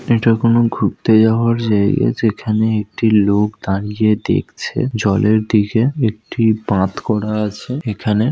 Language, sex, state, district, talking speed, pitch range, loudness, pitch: Bengali, male, West Bengal, North 24 Parganas, 130 wpm, 105-115 Hz, -16 LUFS, 110 Hz